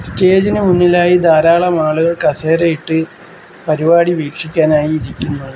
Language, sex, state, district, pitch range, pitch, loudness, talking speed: Malayalam, male, Kerala, Kollam, 155-175 Hz, 165 Hz, -13 LUFS, 85 wpm